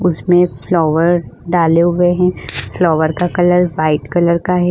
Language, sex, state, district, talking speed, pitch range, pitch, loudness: Hindi, female, Goa, North and South Goa, 155 wpm, 160-180 Hz, 175 Hz, -14 LUFS